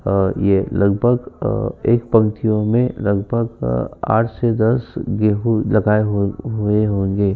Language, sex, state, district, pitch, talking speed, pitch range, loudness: Hindi, male, Uttar Pradesh, Jyotiba Phule Nagar, 105 Hz, 140 wpm, 100-115 Hz, -18 LUFS